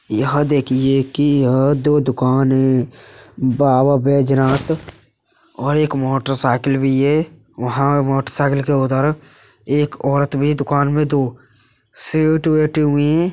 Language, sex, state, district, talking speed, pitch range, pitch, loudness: Hindi, male, Uttar Pradesh, Hamirpur, 130 wpm, 130-145 Hz, 140 Hz, -16 LUFS